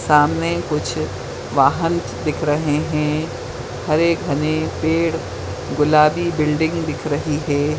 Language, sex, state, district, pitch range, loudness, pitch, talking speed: Hindi, male, Chhattisgarh, Bastar, 145-160 Hz, -19 LUFS, 150 Hz, 115 wpm